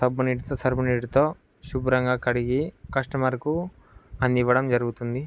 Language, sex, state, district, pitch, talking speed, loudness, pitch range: Telugu, male, Andhra Pradesh, Guntur, 130 Hz, 100 wpm, -25 LUFS, 125-135 Hz